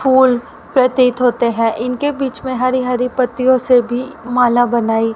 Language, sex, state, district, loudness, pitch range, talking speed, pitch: Hindi, female, Haryana, Rohtak, -15 LUFS, 240-260 Hz, 160 wpm, 250 Hz